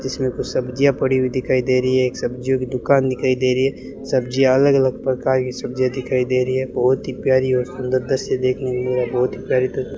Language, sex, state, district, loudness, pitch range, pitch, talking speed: Hindi, male, Rajasthan, Bikaner, -19 LUFS, 125-130 Hz, 130 Hz, 245 wpm